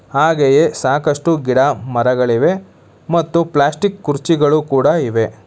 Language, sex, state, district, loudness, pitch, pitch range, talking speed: Kannada, male, Karnataka, Bangalore, -15 LUFS, 145 Hz, 125-165 Hz, 100 wpm